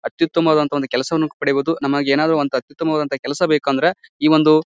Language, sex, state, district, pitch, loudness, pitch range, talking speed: Kannada, male, Karnataka, Bijapur, 150 Hz, -18 LUFS, 140-160 Hz, 155 wpm